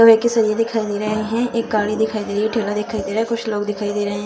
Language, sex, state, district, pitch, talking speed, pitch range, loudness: Hindi, female, Bihar, Saharsa, 215 Hz, 310 wpm, 210-225 Hz, -20 LUFS